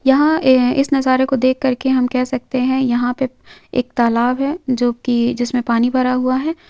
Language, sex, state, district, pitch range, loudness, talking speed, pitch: Hindi, female, Jharkhand, Sahebganj, 245-265 Hz, -17 LUFS, 215 wpm, 255 Hz